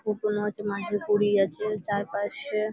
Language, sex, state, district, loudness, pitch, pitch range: Bengali, female, West Bengal, Malda, -27 LUFS, 210 Hz, 205-210 Hz